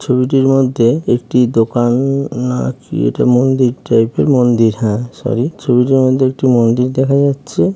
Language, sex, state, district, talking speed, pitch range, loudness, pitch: Bengali, male, West Bengal, Jalpaiguri, 145 wpm, 120-135 Hz, -13 LUFS, 125 Hz